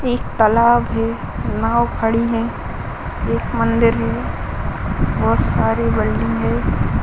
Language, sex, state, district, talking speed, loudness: Hindi, male, Uttar Pradesh, Varanasi, 110 wpm, -18 LUFS